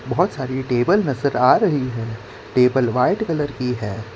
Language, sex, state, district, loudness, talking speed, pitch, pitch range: Hindi, male, Gujarat, Valsad, -19 LUFS, 170 wpm, 125 Hz, 120-135 Hz